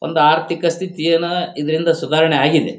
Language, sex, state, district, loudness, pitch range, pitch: Kannada, male, Karnataka, Bellary, -16 LUFS, 155-170 Hz, 165 Hz